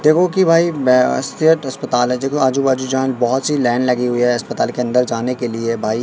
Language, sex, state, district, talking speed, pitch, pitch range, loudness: Hindi, male, Madhya Pradesh, Katni, 250 wpm, 125 Hz, 120-140 Hz, -16 LUFS